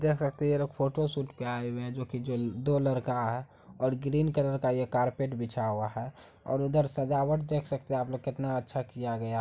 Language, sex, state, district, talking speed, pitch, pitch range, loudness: Hindi, male, Bihar, Araria, 230 wpm, 130 Hz, 125-140 Hz, -31 LUFS